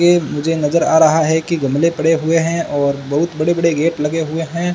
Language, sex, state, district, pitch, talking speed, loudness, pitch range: Hindi, male, Rajasthan, Bikaner, 160 Hz, 240 wpm, -16 LUFS, 150-170 Hz